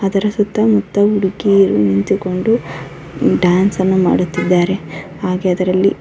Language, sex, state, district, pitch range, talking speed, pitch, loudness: Kannada, female, Karnataka, Bellary, 180-205 Hz, 110 wpm, 190 Hz, -15 LUFS